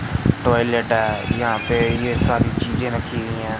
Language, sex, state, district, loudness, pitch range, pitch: Hindi, male, Madhya Pradesh, Katni, -20 LUFS, 110-120 Hz, 115 Hz